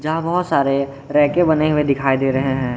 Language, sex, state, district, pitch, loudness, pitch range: Hindi, male, Jharkhand, Garhwa, 140 Hz, -17 LUFS, 135-155 Hz